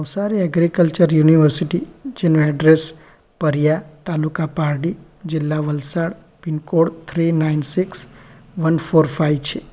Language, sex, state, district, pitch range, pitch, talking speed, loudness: Gujarati, male, Gujarat, Valsad, 155-170 Hz, 160 Hz, 110 wpm, -17 LUFS